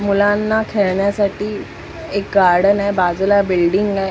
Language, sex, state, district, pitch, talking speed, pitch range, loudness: Marathi, female, Maharashtra, Mumbai Suburban, 200 Hz, 115 wpm, 190-205 Hz, -16 LUFS